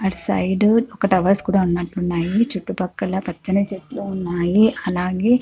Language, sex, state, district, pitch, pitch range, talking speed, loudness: Telugu, female, Andhra Pradesh, Chittoor, 190 Hz, 180-200 Hz, 135 wpm, -20 LUFS